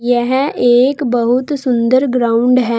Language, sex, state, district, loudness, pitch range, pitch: Hindi, female, Uttar Pradesh, Saharanpur, -13 LUFS, 240-260 Hz, 250 Hz